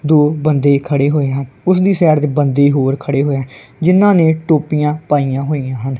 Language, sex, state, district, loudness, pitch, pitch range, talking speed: Punjabi, female, Punjab, Kapurthala, -14 LUFS, 145 Hz, 135-155 Hz, 190 wpm